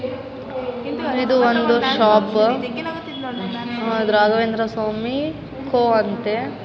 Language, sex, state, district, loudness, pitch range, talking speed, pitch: Kannada, female, Karnataka, Raichur, -20 LUFS, 220-255 Hz, 65 wpm, 235 Hz